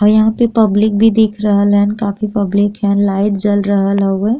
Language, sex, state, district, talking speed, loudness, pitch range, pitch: Bhojpuri, female, Uttar Pradesh, Deoria, 205 wpm, -13 LUFS, 200-215 Hz, 205 Hz